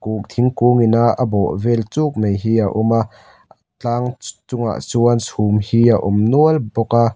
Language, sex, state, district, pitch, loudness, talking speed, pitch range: Mizo, male, Mizoram, Aizawl, 115 Hz, -17 LUFS, 175 wpm, 105-120 Hz